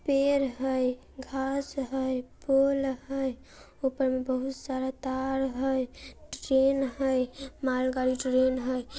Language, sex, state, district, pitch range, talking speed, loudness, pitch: Maithili, female, Bihar, Samastipur, 255-270 Hz, 115 wpm, -29 LUFS, 265 Hz